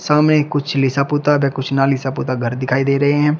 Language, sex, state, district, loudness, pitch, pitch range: Hindi, male, Uttar Pradesh, Shamli, -17 LUFS, 140 Hz, 135-145 Hz